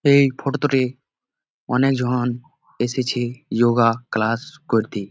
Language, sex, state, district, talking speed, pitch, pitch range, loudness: Bengali, male, West Bengal, Jalpaiguri, 105 wpm, 125 Hz, 120-135 Hz, -21 LUFS